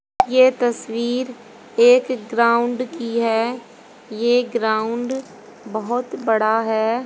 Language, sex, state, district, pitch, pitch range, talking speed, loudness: Hindi, female, Haryana, Jhajjar, 235 Hz, 225-250 Hz, 95 wpm, -19 LUFS